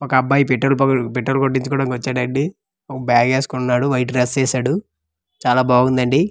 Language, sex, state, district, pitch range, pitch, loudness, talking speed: Telugu, male, Andhra Pradesh, Manyam, 125-135 Hz, 130 Hz, -18 LUFS, 145 wpm